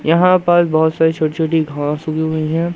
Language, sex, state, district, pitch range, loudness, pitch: Hindi, male, Madhya Pradesh, Umaria, 155-170 Hz, -15 LUFS, 160 Hz